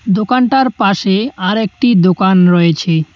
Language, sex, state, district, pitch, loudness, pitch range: Bengali, male, West Bengal, Cooch Behar, 195 Hz, -12 LUFS, 180-230 Hz